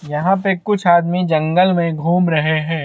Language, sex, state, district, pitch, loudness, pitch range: Hindi, male, Chhattisgarh, Bastar, 170 Hz, -16 LUFS, 155-180 Hz